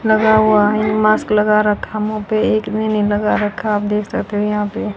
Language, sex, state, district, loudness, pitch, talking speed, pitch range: Hindi, female, Haryana, Rohtak, -16 LUFS, 215 Hz, 240 wpm, 210-215 Hz